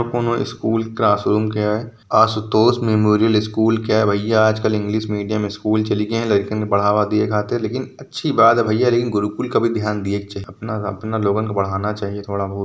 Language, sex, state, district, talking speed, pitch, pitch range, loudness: Hindi, male, Uttar Pradesh, Varanasi, 205 wpm, 110 Hz, 105-115 Hz, -18 LUFS